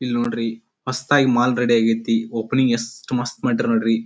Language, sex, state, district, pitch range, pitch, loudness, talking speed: Kannada, male, Karnataka, Dharwad, 115-125 Hz, 120 Hz, -20 LUFS, 180 wpm